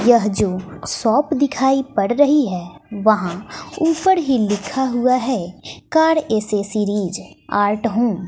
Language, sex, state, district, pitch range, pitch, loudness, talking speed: Hindi, female, Bihar, West Champaran, 200-270 Hz, 220 Hz, -18 LUFS, 130 wpm